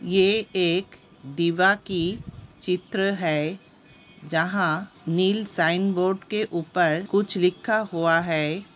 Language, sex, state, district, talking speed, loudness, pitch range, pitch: Hindi, female, Uttar Pradesh, Hamirpur, 110 wpm, -23 LUFS, 165-195 Hz, 180 Hz